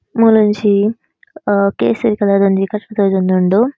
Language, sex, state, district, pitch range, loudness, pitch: Tulu, female, Karnataka, Dakshina Kannada, 200-225 Hz, -14 LUFS, 210 Hz